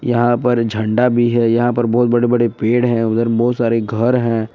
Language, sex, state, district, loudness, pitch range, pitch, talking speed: Hindi, male, Jharkhand, Palamu, -15 LUFS, 115-120 Hz, 120 Hz, 225 wpm